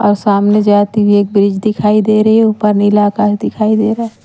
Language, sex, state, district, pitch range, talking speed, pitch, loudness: Hindi, female, Bihar, Katihar, 205-215 Hz, 240 wpm, 210 Hz, -11 LUFS